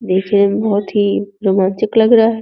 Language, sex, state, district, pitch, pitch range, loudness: Hindi, female, Uttar Pradesh, Deoria, 205 Hz, 200-220 Hz, -14 LUFS